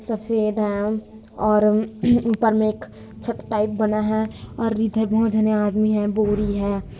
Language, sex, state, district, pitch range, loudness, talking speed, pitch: Hindi, female, Chhattisgarh, Bilaspur, 210-220 Hz, -21 LUFS, 145 wpm, 215 Hz